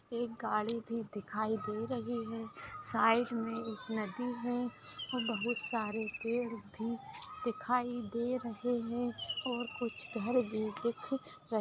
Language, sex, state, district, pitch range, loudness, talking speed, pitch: Hindi, female, Maharashtra, Chandrapur, 220-245 Hz, -37 LUFS, 130 wpm, 235 Hz